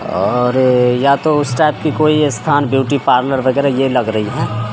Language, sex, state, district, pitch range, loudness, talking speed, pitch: Hindi, male, Bihar, Samastipur, 125-145 Hz, -14 LUFS, 190 wpm, 135 Hz